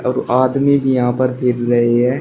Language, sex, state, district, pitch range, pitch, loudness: Hindi, male, Uttar Pradesh, Shamli, 125-130 Hz, 125 Hz, -15 LUFS